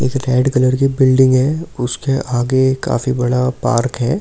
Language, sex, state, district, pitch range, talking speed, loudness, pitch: Hindi, male, Delhi, New Delhi, 125-130 Hz, 185 wpm, -15 LUFS, 130 Hz